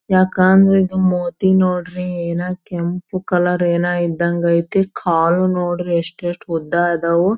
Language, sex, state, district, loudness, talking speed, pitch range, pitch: Kannada, female, Karnataka, Belgaum, -17 LUFS, 130 wpm, 170-185 Hz, 180 Hz